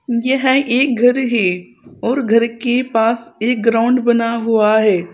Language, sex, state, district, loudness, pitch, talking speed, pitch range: Hindi, female, Uttar Pradesh, Saharanpur, -15 LUFS, 235 Hz, 150 wpm, 225-250 Hz